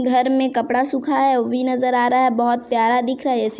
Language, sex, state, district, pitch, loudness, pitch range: Hindi, female, Chhattisgarh, Sarguja, 250 Hz, -18 LUFS, 240-260 Hz